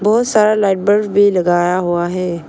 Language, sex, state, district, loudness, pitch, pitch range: Hindi, female, Arunachal Pradesh, Longding, -14 LUFS, 195 Hz, 175-210 Hz